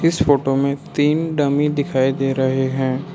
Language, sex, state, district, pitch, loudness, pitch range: Hindi, male, Arunachal Pradesh, Lower Dibang Valley, 140 Hz, -18 LUFS, 135-145 Hz